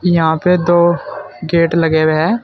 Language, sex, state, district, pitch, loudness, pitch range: Hindi, male, Uttar Pradesh, Saharanpur, 170 Hz, -13 LUFS, 160-175 Hz